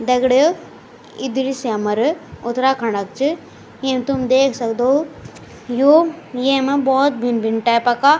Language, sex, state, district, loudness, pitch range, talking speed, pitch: Garhwali, male, Uttarakhand, Tehri Garhwal, -17 LUFS, 240-275 Hz, 140 wpm, 260 Hz